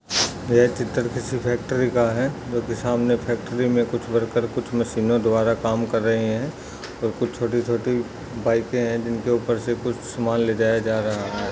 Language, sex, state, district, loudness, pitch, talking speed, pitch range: Hindi, male, Maharashtra, Nagpur, -23 LUFS, 120 Hz, 180 wpm, 115-120 Hz